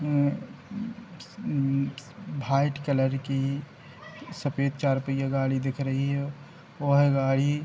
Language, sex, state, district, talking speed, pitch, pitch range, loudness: Hindi, male, Bihar, Darbhanga, 100 wpm, 140 Hz, 135-145 Hz, -28 LUFS